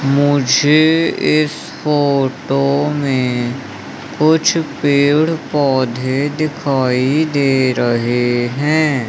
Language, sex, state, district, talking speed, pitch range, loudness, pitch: Hindi, male, Madhya Pradesh, Umaria, 75 wpm, 130-150 Hz, -15 LUFS, 140 Hz